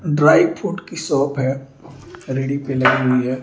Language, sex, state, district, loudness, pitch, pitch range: Hindi, male, Delhi, New Delhi, -18 LUFS, 140 Hz, 130-165 Hz